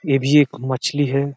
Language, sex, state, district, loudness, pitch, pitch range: Hindi, male, Uttar Pradesh, Deoria, -18 LUFS, 140 Hz, 135-145 Hz